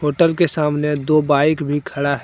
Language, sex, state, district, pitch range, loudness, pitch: Hindi, male, Jharkhand, Deoghar, 145-155 Hz, -17 LUFS, 150 Hz